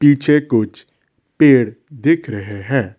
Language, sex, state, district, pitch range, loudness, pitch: Hindi, male, Assam, Kamrup Metropolitan, 110-145 Hz, -16 LUFS, 135 Hz